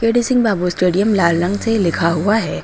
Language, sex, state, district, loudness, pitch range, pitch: Hindi, female, Uttar Pradesh, Lucknow, -16 LUFS, 175-225 Hz, 195 Hz